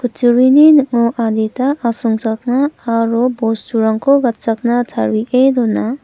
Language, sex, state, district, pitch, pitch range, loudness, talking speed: Garo, female, Meghalaya, West Garo Hills, 240 Hz, 225-255 Hz, -14 LUFS, 90 wpm